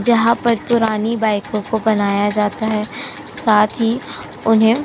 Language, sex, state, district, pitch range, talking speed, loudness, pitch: Hindi, female, Uttar Pradesh, Jyotiba Phule Nagar, 210-230 Hz, 150 wpm, -17 LUFS, 220 Hz